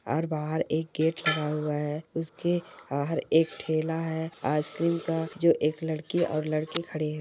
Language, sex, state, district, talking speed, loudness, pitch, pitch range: Hindi, male, West Bengal, Purulia, 160 wpm, -28 LUFS, 160 Hz, 150-165 Hz